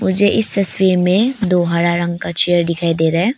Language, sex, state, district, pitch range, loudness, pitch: Hindi, female, Arunachal Pradesh, Papum Pare, 170-200 Hz, -15 LUFS, 180 Hz